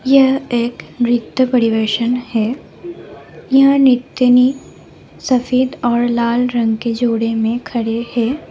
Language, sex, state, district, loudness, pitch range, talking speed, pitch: Hindi, female, Bihar, Lakhisarai, -15 LUFS, 235-260 Hz, 115 wpm, 240 Hz